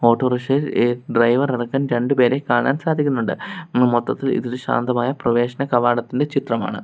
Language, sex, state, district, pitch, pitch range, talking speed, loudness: Malayalam, male, Kerala, Kollam, 125 Hz, 120-135 Hz, 115 wpm, -19 LUFS